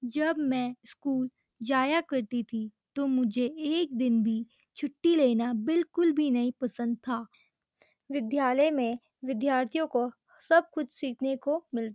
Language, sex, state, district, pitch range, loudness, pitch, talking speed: Hindi, female, Uttarakhand, Uttarkashi, 240-295 Hz, -29 LUFS, 260 Hz, 140 wpm